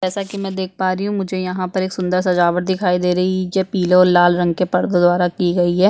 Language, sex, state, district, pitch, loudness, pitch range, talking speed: Hindi, female, Chhattisgarh, Bastar, 185 Hz, -17 LUFS, 180-190 Hz, 285 wpm